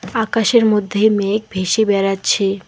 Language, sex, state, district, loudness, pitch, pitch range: Bengali, female, West Bengal, Alipurduar, -16 LUFS, 205 Hz, 195-220 Hz